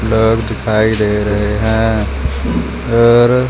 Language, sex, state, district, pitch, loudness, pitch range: Hindi, male, Punjab, Fazilka, 110 Hz, -14 LUFS, 105-110 Hz